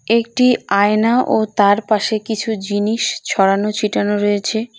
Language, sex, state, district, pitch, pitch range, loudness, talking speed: Bengali, female, West Bengal, Cooch Behar, 215 Hz, 205-225 Hz, -16 LUFS, 125 wpm